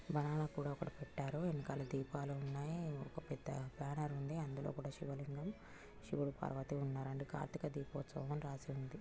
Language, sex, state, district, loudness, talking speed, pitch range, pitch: Telugu, female, Telangana, Nalgonda, -45 LUFS, 140 wpm, 140-150 Hz, 145 Hz